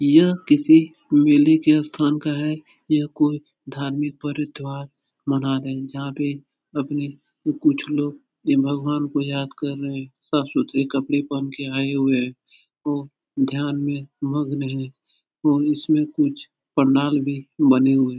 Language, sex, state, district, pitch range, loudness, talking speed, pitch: Hindi, male, Uttar Pradesh, Etah, 140-150 Hz, -21 LUFS, 150 wpm, 145 Hz